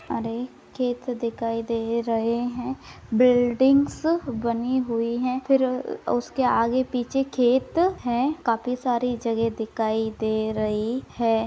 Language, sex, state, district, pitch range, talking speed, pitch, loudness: Hindi, female, Maharashtra, Pune, 230-255 Hz, 120 wpm, 245 Hz, -24 LUFS